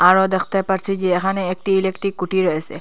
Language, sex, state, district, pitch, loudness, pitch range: Bengali, female, Assam, Hailakandi, 190 Hz, -19 LUFS, 180-195 Hz